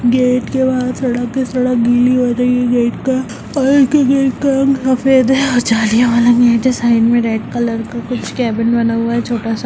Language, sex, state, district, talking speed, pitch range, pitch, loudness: Hindi, female, Bihar, Muzaffarpur, 225 wpm, 235-260 Hz, 245 Hz, -14 LUFS